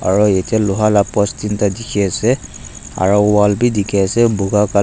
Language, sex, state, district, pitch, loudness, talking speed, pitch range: Nagamese, male, Nagaland, Dimapur, 100 Hz, -15 LUFS, 160 wpm, 95-105 Hz